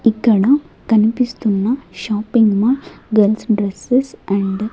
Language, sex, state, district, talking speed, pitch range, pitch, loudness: Telugu, female, Andhra Pradesh, Sri Satya Sai, 100 wpm, 205-240 Hz, 220 Hz, -16 LUFS